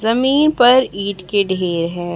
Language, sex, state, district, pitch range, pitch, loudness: Hindi, male, Chhattisgarh, Raipur, 180-250 Hz, 200 Hz, -15 LUFS